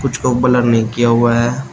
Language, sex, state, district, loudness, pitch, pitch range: Hindi, male, Uttar Pradesh, Shamli, -14 LUFS, 120 Hz, 115-125 Hz